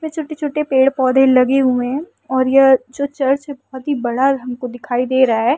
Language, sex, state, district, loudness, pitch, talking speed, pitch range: Hindi, female, Uttar Pradesh, Muzaffarnagar, -16 LUFS, 265 Hz, 195 wpm, 255-280 Hz